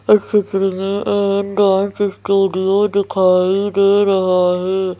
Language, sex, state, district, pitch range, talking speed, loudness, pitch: Hindi, female, Madhya Pradesh, Bhopal, 190-200 Hz, 120 wpm, -16 LUFS, 195 Hz